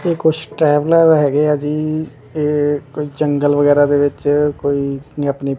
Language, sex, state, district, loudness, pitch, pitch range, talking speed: Punjabi, male, Punjab, Kapurthala, -16 LUFS, 145 Hz, 145-150 Hz, 160 wpm